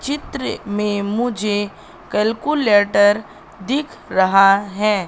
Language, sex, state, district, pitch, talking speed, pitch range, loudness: Hindi, female, Madhya Pradesh, Katni, 210 Hz, 85 wpm, 205-235 Hz, -18 LUFS